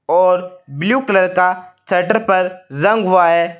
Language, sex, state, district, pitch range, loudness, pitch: Hindi, male, Uttar Pradesh, Saharanpur, 180-190 Hz, -15 LUFS, 180 Hz